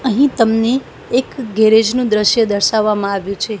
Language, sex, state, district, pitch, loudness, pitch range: Gujarati, female, Gujarat, Gandhinagar, 225 Hz, -15 LUFS, 210-245 Hz